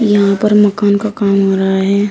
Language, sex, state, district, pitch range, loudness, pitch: Hindi, female, Uttar Pradesh, Shamli, 195-210 Hz, -12 LUFS, 200 Hz